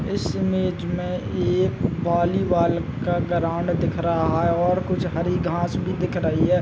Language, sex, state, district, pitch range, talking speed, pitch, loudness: Hindi, male, Chhattisgarh, Bilaspur, 165-175 Hz, 165 wpm, 170 Hz, -23 LUFS